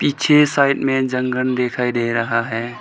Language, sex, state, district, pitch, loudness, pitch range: Hindi, male, Arunachal Pradesh, Lower Dibang Valley, 125 Hz, -18 LUFS, 120-135 Hz